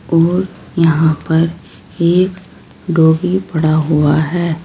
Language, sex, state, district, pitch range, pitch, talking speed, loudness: Hindi, female, Uttar Pradesh, Saharanpur, 160-180 Hz, 165 Hz, 105 wpm, -14 LUFS